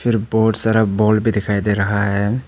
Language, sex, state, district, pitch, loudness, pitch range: Hindi, male, Arunachal Pradesh, Papum Pare, 105 Hz, -17 LUFS, 105-110 Hz